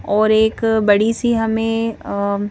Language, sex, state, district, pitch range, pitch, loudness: Hindi, female, Madhya Pradesh, Bhopal, 205-225 Hz, 220 Hz, -17 LUFS